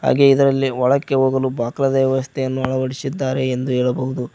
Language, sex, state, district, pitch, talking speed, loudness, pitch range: Kannada, male, Karnataka, Koppal, 130 Hz, 125 wpm, -18 LUFS, 130-135 Hz